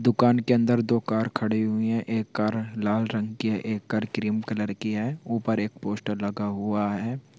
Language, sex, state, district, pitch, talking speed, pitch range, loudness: Hindi, male, Karnataka, Raichur, 110 Hz, 205 wpm, 105-115 Hz, -26 LUFS